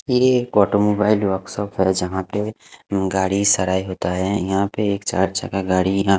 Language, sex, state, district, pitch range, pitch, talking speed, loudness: Hindi, male, Haryana, Charkhi Dadri, 95-105 Hz, 100 Hz, 185 wpm, -20 LUFS